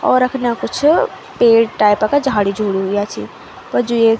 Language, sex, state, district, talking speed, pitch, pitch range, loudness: Garhwali, female, Uttarakhand, Tehri Garhwal, 200 wpm, 225 Hz, 205-250 Hz, -15 LUFS